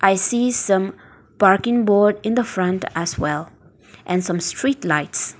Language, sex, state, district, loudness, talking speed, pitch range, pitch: English, female, Nagaland, Dimapur, -19 LUFS, 155 wpm, 180-230 Hz, 195 Hz